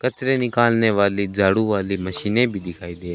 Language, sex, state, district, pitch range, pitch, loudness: Hindi, male, Rajasthan, Bikaner, 95-120 Hz, 105 Hz, -20 LUFS